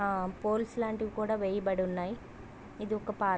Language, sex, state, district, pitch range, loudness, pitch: Telugu, female, Andhra Pradesh, Visakhapatnam, 195-215 Hz, -33 LUFS, 210 Hz